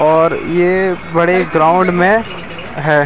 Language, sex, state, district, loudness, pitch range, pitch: Hindi, male, Maharashtra, Mumbai Suburban, -13 LUFS, 160-185 Hz, 175 Hz